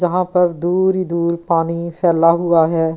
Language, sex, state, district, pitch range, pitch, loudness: Hindi, female, Delhi, New Delhi, 165-180 Hz, 170 Hz, -16 LUFS